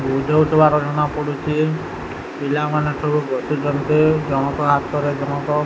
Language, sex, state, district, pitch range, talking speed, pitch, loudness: Odia, male, Odisha, Sambalpur, 145-150 Hz, 95 wpm, 150 Hz, -19 LUFS